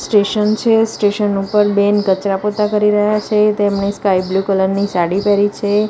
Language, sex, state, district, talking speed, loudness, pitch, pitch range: Gujarati, female, Gujarat, Gandhinagar, 185 wpm, -15 LUFS, 205 Hz, 200-210 Hz